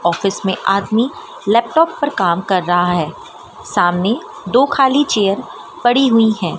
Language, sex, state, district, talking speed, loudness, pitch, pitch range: Hindi, female, Madhya Pradesh, Dhar, 145 wpm, -15 LUFS, 210 Hz, 185-255 Hz